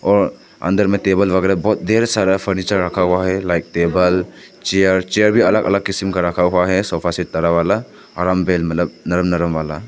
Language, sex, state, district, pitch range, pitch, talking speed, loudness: Hindi, male, Arunachal Pradesh, Papum Pare, 85-95 Hz, 90 Hz, 195 wpm, -17 LUFS